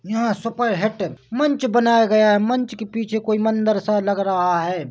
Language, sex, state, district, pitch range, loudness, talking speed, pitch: Hindi, male, Chhattisgarh, Bilaspur, 200-230 Hz, -19 LUFS, 185 wpm, 215 Hz